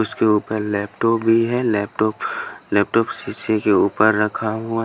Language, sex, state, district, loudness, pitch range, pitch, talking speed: Hindi, male, Haryana, Jhajjar, -19 LUFS, 105-115 Hz, 110 Hz, 150 wpm